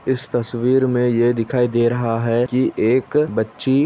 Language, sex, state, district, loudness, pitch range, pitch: Hindi, male, Chhattisgarh, Bastar, -18 LUFS, 120-130 Hz, 120 Hz